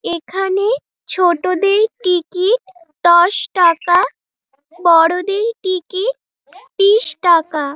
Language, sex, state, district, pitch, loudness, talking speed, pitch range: Bengali, female, West Bengal, Dakshin Dinajpur, 365 Hz, -15 LUFS, 70 wpm, 345-395 Hz